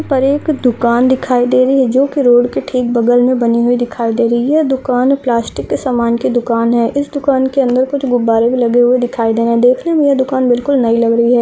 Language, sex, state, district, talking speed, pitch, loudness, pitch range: Hindi, female, Andhra Pradesh, Chittoor, 255 wpm, 245 Hz, -13 LUFS, 235-265 Hz